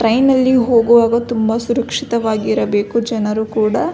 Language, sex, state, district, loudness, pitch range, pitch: Kannada, female, Karnataka, Belgaum, -15 LUFS, 220-240 Hz, 235 Hz